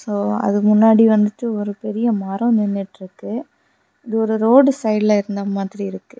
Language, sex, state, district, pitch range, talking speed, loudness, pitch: Tamil, female, Tamil Nadu, Kanyakumari, 205-230 Hz, 145 wpm, -17 LUFS, 215 Hz